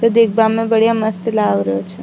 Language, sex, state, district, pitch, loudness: Rajasthani, female, Rajasthan, Nagaur, 220 Hz, -15 LUFS